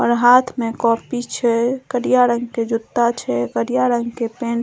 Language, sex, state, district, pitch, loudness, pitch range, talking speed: Maithili, female, Bihar, Saharsa, 235 Hz, -18 LUFS, 230-245 Hz, 195 wpm